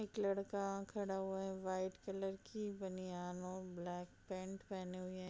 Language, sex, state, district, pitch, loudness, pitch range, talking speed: Hindi, female, Bihar, Gopalganj, 190 Hz, -45 LUFS, 185-195 Hz, 160 wpm